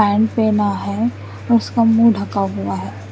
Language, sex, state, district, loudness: Hindi, female, Chandigarh, Chandigarh, -17 LUFS